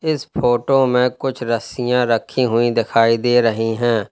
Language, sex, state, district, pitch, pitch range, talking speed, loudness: Hindi, male, Uttar Pradesh, Lalitpur, 120 Hz, 115-125 Hz, 160 wpm, -17 LUFS